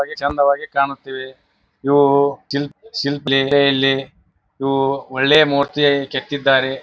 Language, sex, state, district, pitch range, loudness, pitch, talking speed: Kannada, male, Karnataka, Bijapur, 135-140 Hz, -17 LUFS, 140 Hz, 95 wpm